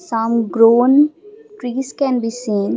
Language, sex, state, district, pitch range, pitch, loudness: English, female, Assam, Kamrup Metropolitan, 230-290 Hz, 245 Hz, -16 LUFS